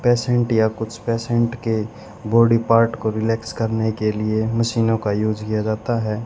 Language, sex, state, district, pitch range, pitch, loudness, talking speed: Hindi, male, Haryana, Charkhi Dadri, 110-115 Hz, 115 Hz, -20 LUFS, 170 wpm